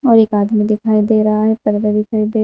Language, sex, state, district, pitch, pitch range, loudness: Hindi, female, Uttar Pradesh, Saharanpur, 215 Hz, 210-220 Hz, -14 LUFS